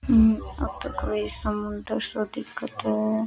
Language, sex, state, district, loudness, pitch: Rajasthani, female, Rajasthan, Nagaur, -27 LUFS, 210 Hz